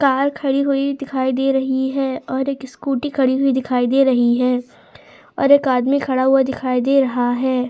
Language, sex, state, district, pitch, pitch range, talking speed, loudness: Hindi, female, Goa, North and South Goa, 265 Hz, 255-275 Hz, 195 wpm, -18 LUFS